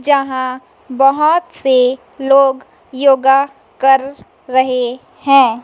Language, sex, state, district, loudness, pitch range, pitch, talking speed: Hindi, female, Chhattisgarh, Raipur, -13 LUFS, 255-275 Hz, 270 Hz, 85 wpm